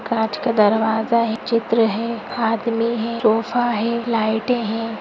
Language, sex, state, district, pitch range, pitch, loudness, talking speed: Hindi, female, Uttar Pradesh, Gorakhpur, 220-235 Hz, 230 Hz, -20 LUFS, 155 wpm